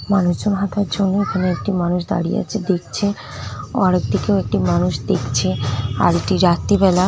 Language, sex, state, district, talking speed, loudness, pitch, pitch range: Bengali, female, West Bengal, North 24 Parganas, 125 wpm, -19 LUFS, 180 Hz, 150-200 Hz